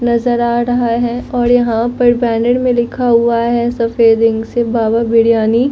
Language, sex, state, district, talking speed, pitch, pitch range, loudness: Hindi, female, Delhi, New Delhi, 180 wpm, 235 Hz, 230-245 Hz, -13 LUFS